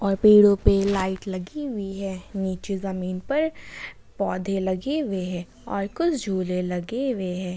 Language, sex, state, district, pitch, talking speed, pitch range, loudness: Hindi, female, Jharkhand, Ranchi, 195 Hz, 160 wpm, 185-210 Hz, -24 LUFS